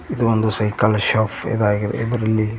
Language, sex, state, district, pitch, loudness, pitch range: Kannada, male, Karnataka, Koppal, 110 Hz, -19 LUFS, 105-115 Hz